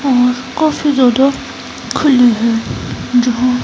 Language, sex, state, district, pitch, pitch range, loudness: Hindi, female, Himachal Pradesh, Shimla, 250 Hz, 245-275 Hz, -13 LUFS